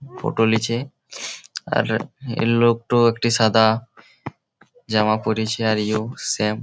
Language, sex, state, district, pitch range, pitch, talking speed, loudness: Bengali, male, West Bengal, Malda, 110-120 Hz, 115 Hz, 120 wpm, -20 LUFS